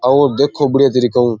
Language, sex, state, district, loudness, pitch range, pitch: Rajasthani, male, Rajasthan, Churu, -13 LUFS, 125-140 Hz, 135 Hz